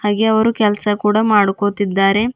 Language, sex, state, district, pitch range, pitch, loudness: Kannada, female, Karnataka, Bidar, 205-220 Hz, 210 Hz, -15 LUFS